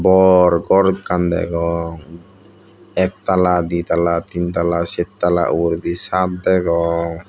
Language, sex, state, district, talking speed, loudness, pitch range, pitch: Chakma, male, Tripura, Dhalai, 90 wpm, -17 LUFS, 85-95 Hz, 85 Hz